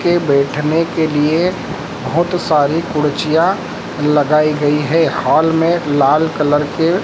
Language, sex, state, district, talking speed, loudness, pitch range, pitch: Hindi, male, Madhya Pradesh, Dhar, 130 wpm, -15 LUFS, 150-165 Hz, 155 Hz